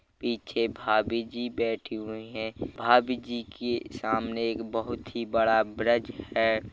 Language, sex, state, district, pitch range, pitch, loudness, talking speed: Hindi, male, Chhattisgarh, Rajnandgaon, 110-120 Hz, 115 Hz, -29 LUFS, 140 wpm